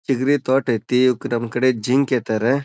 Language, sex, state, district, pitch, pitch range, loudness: Kannada, male, Karnataka, Bijapur, 130 Hz, 120-135 Hz, -19 LUFS